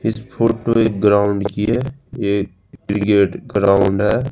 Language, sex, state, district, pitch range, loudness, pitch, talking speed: Hindi, male, Rajasthan, Jaipur, 100-115 Hz, -17 LUFS, 105 Hz, 140 wpm